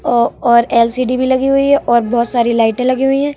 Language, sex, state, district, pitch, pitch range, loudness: Hindi, female, Bihar, Vaishali, 250 Hz, 235-265 Hz, -13 LUFS